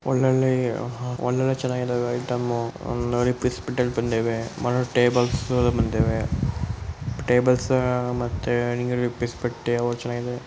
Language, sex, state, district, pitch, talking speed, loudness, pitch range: Kannada, male, Karnataka, Chamarajanagar, 120 Hz, 95 wpm, -24 LUFS, 120-125 Hz